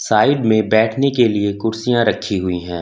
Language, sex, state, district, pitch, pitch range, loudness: Hindi, male, Uttar Pradesh, Lucknow, 110 Hz, 100-120 Hz, -16 LUFS